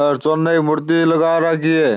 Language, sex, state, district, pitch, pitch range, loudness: Marwari, male, Rajasthan, Churu, 160 Hz, 155-165 Hz, -16 LUFS